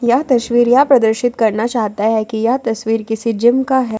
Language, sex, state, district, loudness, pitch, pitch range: Hindi, female, Jharkhand, Ranchi, -15 LUFS, 230 Hz, 220-245 Hz